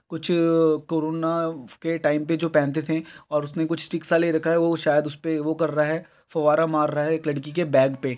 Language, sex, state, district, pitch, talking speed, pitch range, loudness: Maithili, male, Bihar, Araria, 160 Hz, 225 wpm, 150-165 Hz, -23 LUFS